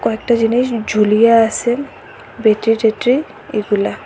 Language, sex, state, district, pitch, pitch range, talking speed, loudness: Bengali, female, Assam, Hailakandi, 225 Hz, 215-240 Hz, 105 wpm, -15 LUFS